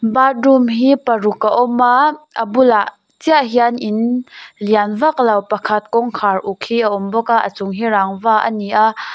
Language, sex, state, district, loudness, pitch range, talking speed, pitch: Mizo, female, Mizoram, Aizawl, -15 LUFS, 210-250 Hz, 175 wpm, 230 Hz